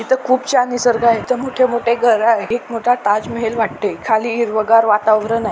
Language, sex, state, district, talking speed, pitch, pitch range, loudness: Marathi, male, Maharashtra, Dhule, 185 wpm, 230 Hz, 215-240 Hz, -16 LUFS